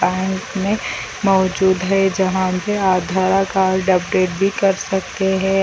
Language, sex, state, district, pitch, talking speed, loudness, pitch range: Hindi, female, Chhattisgarh, Raigarh, 190 Hz, 140 wpm, -18 LUFS, 185-195 Hz